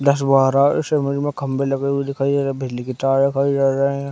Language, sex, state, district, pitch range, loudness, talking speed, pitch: Hindi, male, Chhattisgarh, Raigarh, 135-140 Hz, -19 LUFS, 260 wpm, 140 Hz